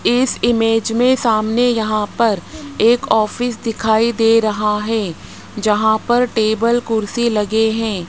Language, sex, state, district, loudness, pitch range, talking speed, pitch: Hindi, male, Rajasthan, Jaipur, -16 LUFS, 215-235 Hz, 135 wpm, 225 Hz